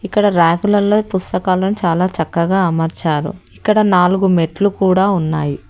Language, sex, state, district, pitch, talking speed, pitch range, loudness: Telugu, female, Telangana, Hyderabad, 185 Hz, 115 wpm, 170-200 Hz, -15 LUFS